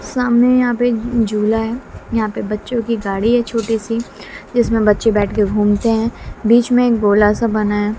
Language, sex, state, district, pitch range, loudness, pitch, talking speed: Hindi, female, Bihar, West Champaran, 210-235 Hz, -16 LUFS, 225 Hz, 205 wpm